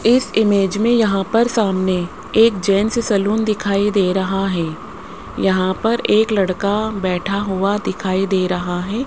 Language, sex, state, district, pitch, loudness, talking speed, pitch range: Hindi, female, Rajasthan, Jaipur, 200 Hz, -17 LUFS, 150 wpm, 185-220 Hz